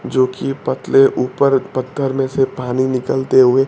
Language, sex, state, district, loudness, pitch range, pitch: Hindi, male, Bihar, Kaimur, -16 LUFS, 130-135 Hz, 130 Hz